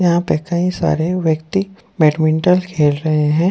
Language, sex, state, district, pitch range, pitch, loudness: Hindi, male, Jharkhand, Deoghar, 155-180 Hz, 165 Hz, -16 LUFS